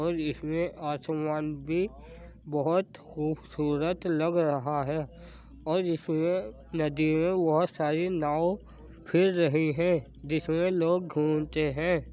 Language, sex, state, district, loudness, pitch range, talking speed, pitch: Hindi, male, Uttar Pradesh, Jyotiba Phule Nagar, -29 LUFS, 150-175 Hz, 115 wpm, 160 Hz